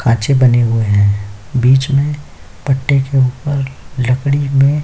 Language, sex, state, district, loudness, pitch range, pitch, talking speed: Hindi, male, Chhattisgarh, Kabirdham, -14 LUFS, 120-140 Hz, 135 Hz, 150 wpm